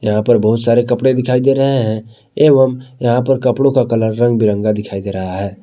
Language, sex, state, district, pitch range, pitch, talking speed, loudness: Hindi, male, Jharkhand, Palamu, 110-130 Hz, 120 Hz, 225 wpm, -14 LUFS